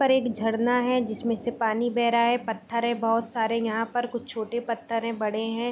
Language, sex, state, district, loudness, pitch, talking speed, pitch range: Hindi, female, Bihar, Vaishali, -26 LUFS, 230 Hz, 240 wpm, 225-240 Hz